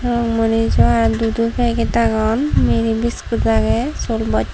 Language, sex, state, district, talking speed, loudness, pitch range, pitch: Chakma, female, Tripura, Dhalai, 130 wpm, -17 LUFS, 225-235 Hz, 225 Hz